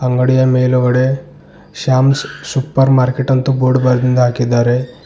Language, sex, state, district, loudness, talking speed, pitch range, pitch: Kannada, male, Karnataka, Bidar, -14 LUFS, 105 wpm, 125-135 Hz, 130 Hz